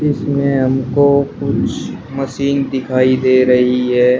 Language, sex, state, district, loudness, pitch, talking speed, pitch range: Hindi, male, Uttar Pradesh, Shamli, -15 LUFS, 130 Hz, 115 wpm, 130-140 Hz